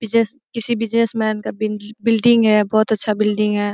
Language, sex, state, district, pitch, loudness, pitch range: Hindi, female, Bihar, Araria, 220 Hz, -18 LUFS, 210-230 Hz